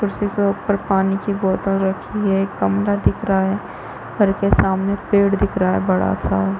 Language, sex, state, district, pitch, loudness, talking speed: Hindi, female, Chhattisgarh, Bastar, 195 Hz, -19 LUFS, 210 wpm